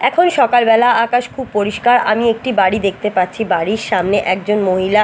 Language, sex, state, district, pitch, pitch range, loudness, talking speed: Bengali, female, Bihar, Katihar, 210 Hz, 195-240 Hz, -15 LUFS, 165 wpm